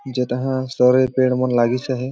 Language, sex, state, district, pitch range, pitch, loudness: Sadri, male, Chhattisgarh, Jashpur, 125-130 Hz, 130 Hz, -18 LUFS